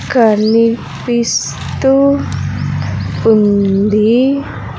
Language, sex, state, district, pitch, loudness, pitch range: Telugu, female, Andhra Pradesh, Sri Satya Sai, 195 Hz, -13 LUFS, 135-225 Hz